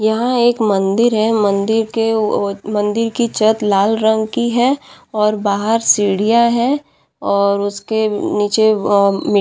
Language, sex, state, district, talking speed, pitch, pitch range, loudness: Hindi, female, Bihar, Madhepura, 155 wpm, 220 Hz, 205-230 Hz, -15 LUFS